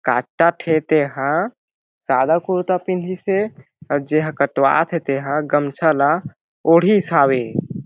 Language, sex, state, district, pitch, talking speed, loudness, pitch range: Chhattisgarhi, male, Chhattisgarh, Jashpur, 155 Hz, 120 wpm, -18 LUFS, 140-175 Hz